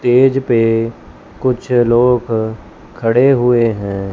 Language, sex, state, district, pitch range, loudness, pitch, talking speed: Hindi, male, Chandigarh, Chandigarh, 110-125 Hz, -14 LUFS, 115 Hz, 100 wpm